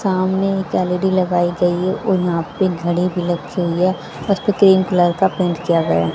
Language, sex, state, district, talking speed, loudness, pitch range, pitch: Hindi, female, Haryana, Jhajjar, 195 wpm, -17 LUFS, 175-190 Hz, 180 Hz